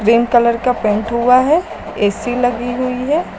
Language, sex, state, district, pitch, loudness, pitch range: Hindi, female, Uttar Pradesh, Lucknow, 245 Hz, -15 LUFS, 235-255 Hz